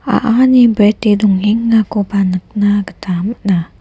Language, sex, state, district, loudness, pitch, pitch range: Garo, female, Meghalaya, West Garo Hills, -13 LUFS, 205 Hz, 195-225 Hz